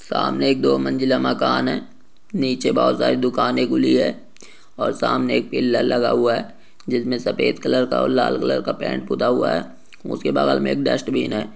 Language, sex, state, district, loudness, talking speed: Hindi, male, Rajasthan, Nagaur, -20 LUFS, 180 wpm